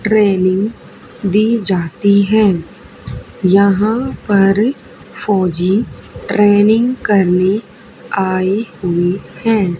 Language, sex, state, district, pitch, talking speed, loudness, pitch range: Hindi, female, Haryana, Charkhi Dadri, 200 Hz, 75 wpm, -14 LUFS, 185-215 Hz